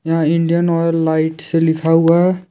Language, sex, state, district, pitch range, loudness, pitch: Hindi, male, Jharkhand, Deoghar, 160-170 Hz, -15 LUFS, 165 Hz